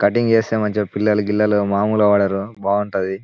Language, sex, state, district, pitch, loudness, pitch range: Telugu, male, Telangana, Nalgonda, 105 Hz, -18 LUFS, 100-105 Hz